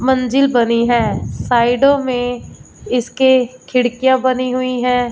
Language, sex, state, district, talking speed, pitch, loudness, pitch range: Hindi, female, Punjab, Fazilka, 115 wpm, 250 Hz, -15 LUFS, 245-260 Hz